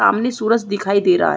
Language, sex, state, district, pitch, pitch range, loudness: Hindi, female, Uttar Pradesh, Gorakhpur, 205 Hz, 200-230 Hz, -17 LUFS